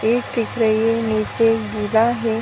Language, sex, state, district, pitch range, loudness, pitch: Hindi, female, Uttar Pradesh, Deoria, 220-230 Hz, -19 LUFS, 225 Hz